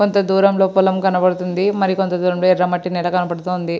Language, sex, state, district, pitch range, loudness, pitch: Telugu, female, Andhra Pradesh, Srikakulam, 180-190 Hz, -17 LUFS, 185 Hz